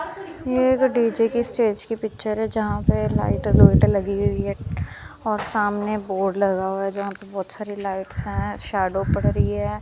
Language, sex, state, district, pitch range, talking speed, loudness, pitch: Hindi, female, Punjab, Kapurthala, 185-220 Hz, 195 wpm, -22 LUFS, 200 Hz